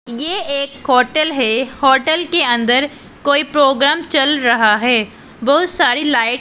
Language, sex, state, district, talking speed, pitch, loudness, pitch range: Hindi, female, Punjab, Pathankot, 150 wpm, 275 Hz, -14 LUFS, 245-300 Hz